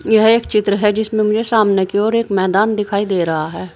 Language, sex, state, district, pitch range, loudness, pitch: Hindi, female, Uttar Pradesh, Saharanpur, 195-220 Hz, -15 LUFS, 210 Hz